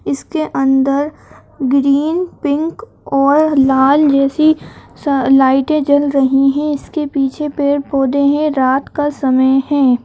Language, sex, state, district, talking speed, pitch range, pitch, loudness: Kumaoni, female, Uttarakhand, Uttarkashi, 125 wpm, 270-295 Hz, 280 Hz, -14 LUFS